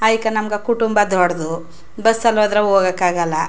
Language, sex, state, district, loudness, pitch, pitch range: Kannada, female, Karnataka, Chamarajanagar, -17 LUFS, 210 Hz, 175-220 Hz